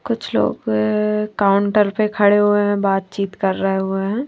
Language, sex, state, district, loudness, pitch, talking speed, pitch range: Hindi, female, Maharashtra, Washim, -18 LUFS, 205 Hz, 170 wpm, 195-210 Hz